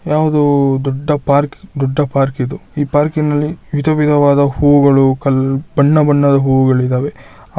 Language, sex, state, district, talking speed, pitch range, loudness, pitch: Kannada, male, Karnataka, Shimoga, 125 wpm, 135-150 Hz, -13 LUFS, 140 Hz